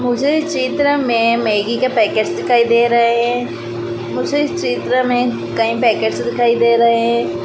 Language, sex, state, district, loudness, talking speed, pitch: Hindi, female, Madhya Pradesh, Dhar, -15 LUFS, 170 wpm, 225 Hz